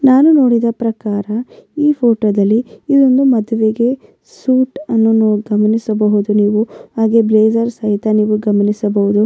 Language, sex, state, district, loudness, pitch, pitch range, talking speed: Kannada, female, Karnataka, Mysore, -14 LUFS, 225 Hz, 210-240 Hz, 110 wpm